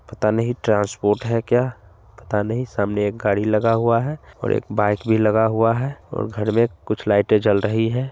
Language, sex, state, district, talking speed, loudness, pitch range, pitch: Hindi, male, Bihar, Gopalganj, 215 wpm, -20 LUFS, 105-115 Hz, 110 Hz